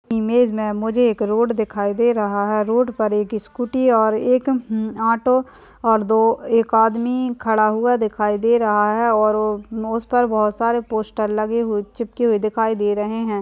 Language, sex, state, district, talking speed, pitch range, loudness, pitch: Hindi, female, West Bengal, Dakshin Dinajpur, 170 wpm, 215-235 Hz, -19 LUFS, 225 Hz